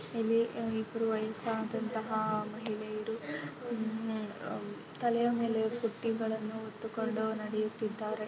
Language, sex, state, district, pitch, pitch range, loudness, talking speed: Kannada, female, Karnataka, Dakshina Kannada, 220 Hz, 215-225 Hz, -35 LUFS, 70 wpm